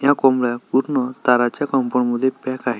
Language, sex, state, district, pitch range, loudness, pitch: Marathi, male, Maharashtra, Solapur, 125-135 Hz, -19 LUFS, 130 Hz